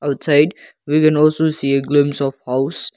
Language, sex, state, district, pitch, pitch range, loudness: English, male, Nagaland, Kohima, 145 Hz, 140-155 Hz, -16 LUFS